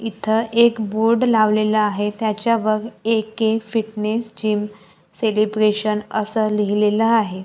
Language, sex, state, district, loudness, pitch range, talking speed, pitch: Marathi, female, Maharashtra, Gondia, -19 LUFS, 210-225 Hz, 105 wpm, 215 Hz